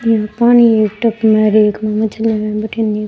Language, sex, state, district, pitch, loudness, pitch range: Rajasthani, female, Rajasthan, Churu, 220 Hz, -13 LUFS, 215-225 Hz